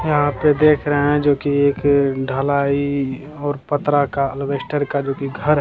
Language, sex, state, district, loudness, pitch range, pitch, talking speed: Hindi, male, Bihar, Jamui, -18 LUFS, 140-145 Hz, 145 Hz, 190 wpm